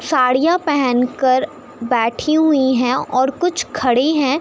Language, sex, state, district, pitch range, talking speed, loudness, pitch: Hindi, female, Uttar Pradesh, Budaun, 250-305 Hz, 135 wpm, -16 LUFS, 265 Hz